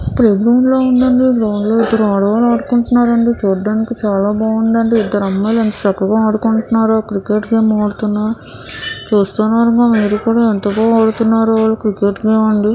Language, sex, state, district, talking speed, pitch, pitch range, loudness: Telugu, female, Andhra Pradesh, Srikakulam, 145 wpm, 220 Hz, 210-230 Hz, -13 LUFS